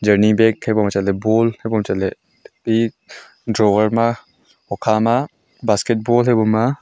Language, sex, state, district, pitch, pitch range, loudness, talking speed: Wancho, male, Arunachal Pradesh, Longding, 110 Hz, 105-115 Hz, -17 LUFS, 160 wpm